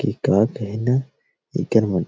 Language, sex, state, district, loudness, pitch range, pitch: Chhattisgarhi, male, Chhattisgarh, Rajnandgaon, -21 LUFS, 105-135 Hz, 110 Hz